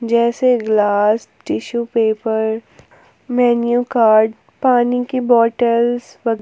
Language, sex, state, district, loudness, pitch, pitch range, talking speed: Hindi, female, Jharkhand, Palamu, -16 LUFS, 235 Hz, 220-245 Hz, 105 wpm